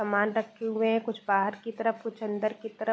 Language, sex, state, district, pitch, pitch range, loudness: Hindi, female, Bihar, Gopalganj, 225 Hz, 210-225 Hz, -29 LUFS